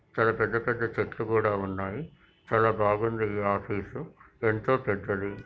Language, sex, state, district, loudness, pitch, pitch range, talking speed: Telugu, male, Telangana, Nalgonda, -28 LUFS, 110 Hz, 100-115 Hz, 145 wpm